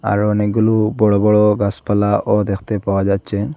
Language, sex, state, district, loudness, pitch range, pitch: Bengali, male, Assam, Hailakandi, -16 LUFS, 100-105 Hz, 105 Hz